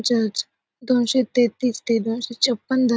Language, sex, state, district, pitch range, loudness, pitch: Marathi, female, Maharashtra, Solapur, 230-250 Hz, -21 LUFS, 240 Hz